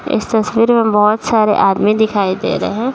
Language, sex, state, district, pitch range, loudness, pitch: Hindi, male, Bihar, Jahanabad, 210-225 Hz, -14 LUFS, 215 Hz